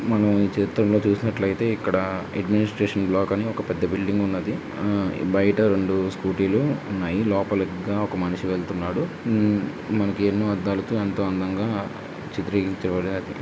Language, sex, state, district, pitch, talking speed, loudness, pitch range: Telugu, male, Andhra Pradesh, Srikakulam, 100 Hz, 125 wpm, -24 LUFS, 95-105 Hz